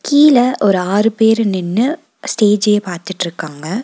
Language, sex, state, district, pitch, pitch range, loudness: Tamil, female, Tamil Nadu, Nilgiris, 210 Hz, 185-245 Hz, -14 LUFS